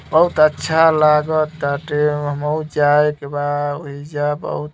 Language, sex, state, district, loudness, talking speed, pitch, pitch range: Bhojpuri, male, Uttar Pradesh, Gorakhpur, -17 LUFS, 125 wpm, 150 Hz, 145-155 Hz